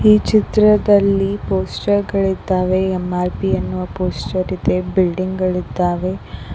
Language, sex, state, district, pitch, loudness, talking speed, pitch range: Kannada, female, Karnataka, Koppal, 185 Hz, -17 LUFS, 90 wpm, 180-200 Hz